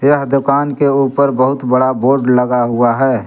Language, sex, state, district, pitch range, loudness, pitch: Hindi, male, Jharkhand, Garhwa, 125-140 Hz, -13 LUFS, 135 Hz